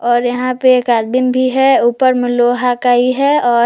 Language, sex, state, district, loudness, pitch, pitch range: Hindi, female, Jharkhand, Palamu, -13 LUFS, 250 Hz, 240-255 Hz